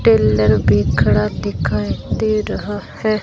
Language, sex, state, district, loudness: Hindi, female, Rajasthan, Bikaner, -17 LUFS